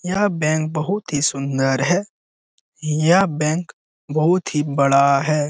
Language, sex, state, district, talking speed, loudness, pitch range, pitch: Hindi, male, Bihar, Jamui, 140 wpm, -19 LUFS, 145-180 Hz, 155 Hz